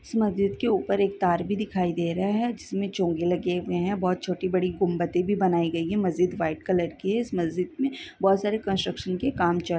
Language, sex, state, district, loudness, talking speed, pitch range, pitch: Hindi, female, Bihar, Saran, -26 LUFS, 235 wpm, 175-200 Hz, 185 Hz